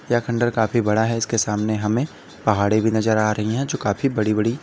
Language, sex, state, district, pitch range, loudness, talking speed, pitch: Hindi, male, Uttar Pradesh, Lalitpur, 110-120 Hz, -21 LUFS, 235 wpm, 110 Hz